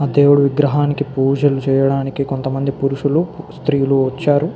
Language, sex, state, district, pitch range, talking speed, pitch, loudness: Telugu, male, Andhra Pradesh, Krishna, 135-145 Hz, 130 wpm, 140 Hz, -16 LUFS